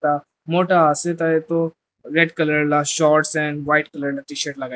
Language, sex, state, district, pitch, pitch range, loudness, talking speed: Nagamese, male, Nagaland, Dimapur, 150 Hz, 145-165 Hz, -19 LUFS, 190 wpm